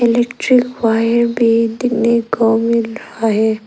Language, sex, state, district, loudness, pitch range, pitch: Hindi, female, Arunachal Pradesh, Lower Dibang Valley, -15 LUFS, 225-235 Hz, 230 Hz